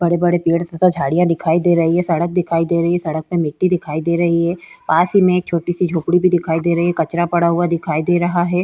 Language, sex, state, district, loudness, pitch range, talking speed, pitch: Hindi, female, Goa, North and South Goa, -17 LUFS, 165-175 Hz, 270 wpm, 170 Hz